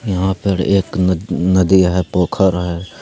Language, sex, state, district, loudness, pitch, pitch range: Hindi, male, Bihar, Lakhisarai, -16 LUFS, 90 Hz, 90-95 Hz